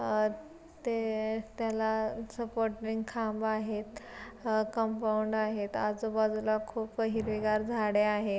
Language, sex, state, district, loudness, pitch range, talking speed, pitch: Marathi, female, Maharashtra, Pune, -32 LUFS, 215-225 Hz, 105 wpm, 220 Hz